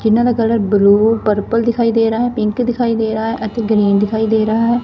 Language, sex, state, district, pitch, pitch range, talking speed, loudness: Punjabi, female, Punjab, Fazilka, 225 Hz, 215-235 Hz, 250 wpm, -15 LUFS